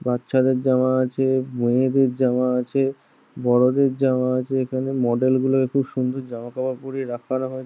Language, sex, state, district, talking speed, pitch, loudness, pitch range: Bengali, male, West Bengal, Jhargram, 140 wpm, 130 Hz, -21 LUFS, 125-130 Hz